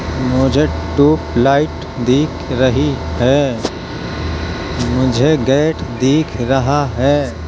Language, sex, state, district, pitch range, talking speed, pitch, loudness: Hindi, male, Uttar Pradesh, Hamirpur, 115-140 Hz, 80 wpm, 130 Hz, -15 LUFS